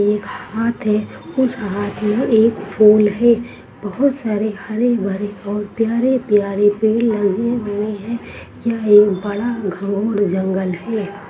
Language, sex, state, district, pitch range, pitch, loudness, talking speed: Hindi, female, Bihar, Saharsa, 205-230 Hz, 210 Hz, -18 LUFS, 125 wpm